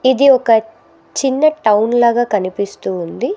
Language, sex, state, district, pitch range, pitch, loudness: Telugu, female, Andhra Pradesh, Sri Satya Sai, 210-265 Hz, 235 Hz, -14 LUFS